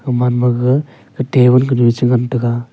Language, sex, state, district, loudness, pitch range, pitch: Wancho, male, Arunachal Pradesh, Longding, -14 LUFS, 120-130 Hz, 125 Hz